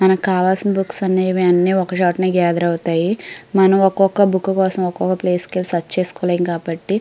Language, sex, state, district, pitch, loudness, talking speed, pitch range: Telugu, female, Andhra Pradesh, Srikakulam, 185 Hz, -17 LUFS, 170 wpm, 180-190 Hz